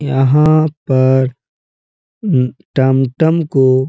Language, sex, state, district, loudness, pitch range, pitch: Hindi, male, Uttar Pradesh, Jalaun, -13 LUFS, 130-150 Hz, 130 Hz